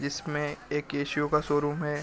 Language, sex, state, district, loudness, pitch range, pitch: Hindi, male, Chhattisgarh, Bilaspur, -29 LUFS, 145-150 Hz, 145 Hz